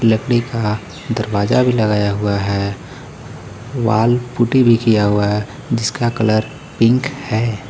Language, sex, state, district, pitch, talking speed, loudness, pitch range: Hindi, male, Jharkhand, Garhwa, 115 Hz, 130 wpm, -17 LUFS, 105-120 Hz